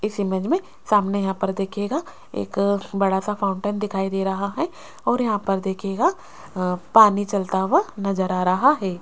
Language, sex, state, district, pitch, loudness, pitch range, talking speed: Hindi, female, Rajasthan, Jaipur, 200 Hz, -22 LUFS, 190-210 Hz, 165 wpm